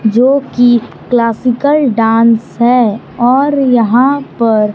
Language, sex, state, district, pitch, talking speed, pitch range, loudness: Hindi, male, Bihar, Kaimur, 240 Hz, 100 wpm, 230-260 Hz, -11 LUFS